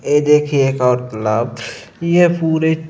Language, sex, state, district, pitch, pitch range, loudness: Hindi, male, Chhattisgarh, Sarguja, 145 Hz, 125-160 Hz, -15 LUFS